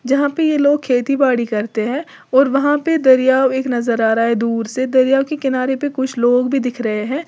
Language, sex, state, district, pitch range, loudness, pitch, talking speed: Hindi, female, Uttar Pradesh, Lalitpur, 240-275 Hz, -16 LUFS, 260 Hz, 240 wpm